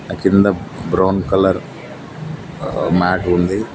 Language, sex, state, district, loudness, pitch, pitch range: Telugu, male, Telangana, Mahabubabad, -16 LUFS, 95 Hz, 90-95 Hz